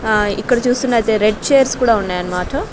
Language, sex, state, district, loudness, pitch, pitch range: Telugu, female, Andhra Pradesh, Sri Satya Sai, -15 LUFS, 220 Hz, 205-245 Hz